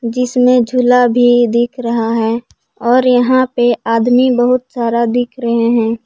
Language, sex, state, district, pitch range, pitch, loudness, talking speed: Hindi, female, Jharkhand, Palamu, 235-250 Hz, 240 Hz, -13 LUFS, 150 wpm